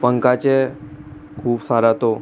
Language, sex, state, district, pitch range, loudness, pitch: Rajasthani, male, Rajasthan, Churu, 115-135 Hz, -18 LUFS, 125 Hz